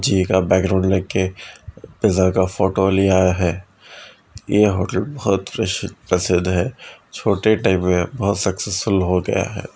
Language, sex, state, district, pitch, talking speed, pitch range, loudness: Hindi, male, Bihar, Vaishali, 95 Hz, 135 wpm, 95-100 Hz, -19 LUFS